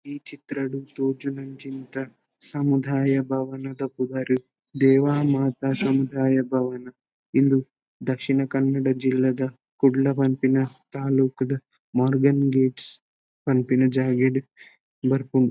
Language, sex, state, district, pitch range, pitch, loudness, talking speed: Tulu, male, Karnataka, Dakshina Kannada, 130-135 Hz, 135 Hz, -23 LUFS, 85 wpm